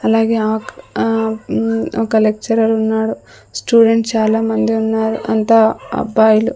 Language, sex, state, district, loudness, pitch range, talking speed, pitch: Telugu, female, Andhra Pradesh, Sri Satya Sai, -15 LUFS, 220-225 Hz, 130 wpm, 220 Hz